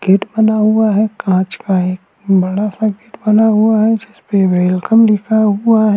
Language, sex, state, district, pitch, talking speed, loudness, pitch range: Hindi, male, Uttarakhand, Tehri Garhwal, 210 Hz, 180 wpm, -13 LUFS, 195-220 Hz